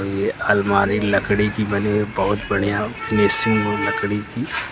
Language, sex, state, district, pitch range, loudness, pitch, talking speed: Hindi, male, Uttar Pradesh, Lucknow, 100-105 Hz, -20 LUFS, 105 Hz, 155 wpm